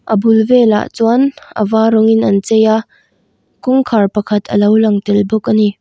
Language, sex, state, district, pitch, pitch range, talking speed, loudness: Mizo, female, Mizoram, Aizawl, 220 Hz, 210-225 Hz, 205 wpm, -12 LUFS